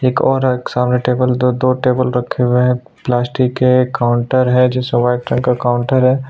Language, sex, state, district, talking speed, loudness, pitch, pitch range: Hindi, male, Chhattisgarh, Sukma, 180 wpm, -15 LUFS, 125 Hz, 125-130 Hz